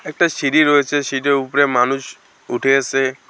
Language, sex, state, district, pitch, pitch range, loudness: Bengali, male, West Bengal, Alipurduar, 135 Hz, 135-145 Hz, -17 LUFS